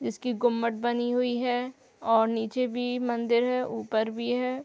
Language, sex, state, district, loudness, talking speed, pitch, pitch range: Hindi, female, Uttar Pradesh, Hamirpur, -28 LUFS, 165 wpm, 240 Hz, 230-250 Hz